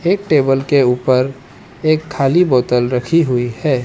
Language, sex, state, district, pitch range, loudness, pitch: Hindi, male, Arunachal Pradesh, Lower Dibang Valley, 125-155 Hz, -15 LUFS, 135 Hz